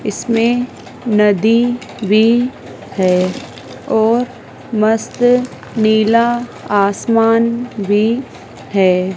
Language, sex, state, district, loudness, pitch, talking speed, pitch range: Hindi, female, Madhya Pradesh, Dhar, -15 LUFS, 225 Hz, 65 wpm, 210-240 Hz